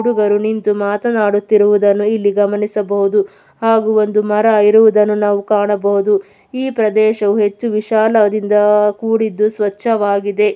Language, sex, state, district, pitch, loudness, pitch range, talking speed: Kannada, female, Karnataka, Belgaum, 210 Hz, -14 LUFS, 205-220 Hz, 95 wpm